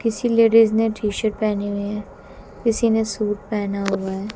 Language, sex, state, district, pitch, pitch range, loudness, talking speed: Hindi, female, Haryana, Jhajjar, 215 Hz, 205-225 Hz, -20 LUFS, 180 wpm